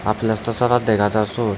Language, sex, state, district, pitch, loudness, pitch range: Chakma, male, Tripura, Dhalai, 110 Hz, -19 LUFS, 105-115 Hz